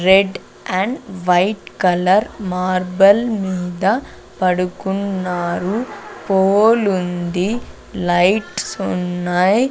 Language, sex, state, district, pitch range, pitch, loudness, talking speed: Telugu, female, Andhra Pradesh, Sri Satya Sai, 180-200 Hz, 190 Hz, -17 LUFS, 60 wpm